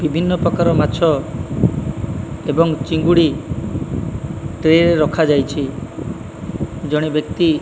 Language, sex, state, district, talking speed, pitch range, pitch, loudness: Odia, male, Odisha, Malkangiri, 85 wpm, 145-165 Hz, 155 Hz, -18 LUFS